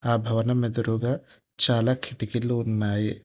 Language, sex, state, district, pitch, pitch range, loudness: Telugu, male, Telangana, Hyderabad, 120 Hz, 115-125 Hz, -22 LUFS